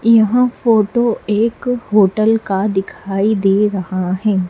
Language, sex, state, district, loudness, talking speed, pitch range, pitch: Hindi, female, Madhya Pradesh, Dhar, -15 LUFS, 120 wpm, 195-230 Hz, 210 Hz